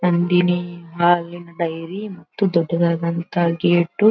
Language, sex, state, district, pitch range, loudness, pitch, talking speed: Kannada, female, Karnataka, Belgaum, 170-180 Hz, -20 LUFS, 175 Hz, 100 wpm